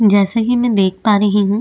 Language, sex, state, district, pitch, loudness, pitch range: Hindi, female, Chhattisgarh, Bastar, 205 Hz, -14 LUFS, 200-225 Hz